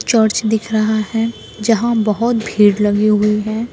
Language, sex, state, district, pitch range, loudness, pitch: Hindi, female, Bihar, Kaimur, 210-225 Hz, -15 LUFS, 220 Hz